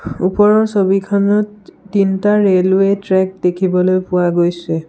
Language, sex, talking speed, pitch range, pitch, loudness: Assamese, male, 100 wpm, 180-200 Hz, 190 Hz, -14 LUFS